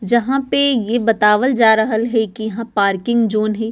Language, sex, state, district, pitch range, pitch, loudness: Bajjika, female, Bihar, Vaishali, 215-240 Hz, 225 Hz, -16 LUFS